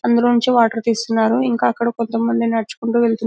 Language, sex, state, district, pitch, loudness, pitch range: Telugu, female, Telangana, Karimnagar, 230 Hz, -17 LUFS, 225-235 Hz